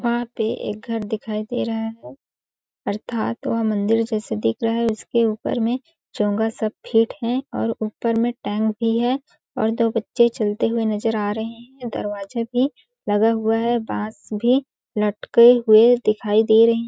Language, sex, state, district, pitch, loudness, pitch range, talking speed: Hindi, female, Chhattisgarh, Balrampur, 225 Hz, -21 LUFS, 215-235 Hz, 175 wpm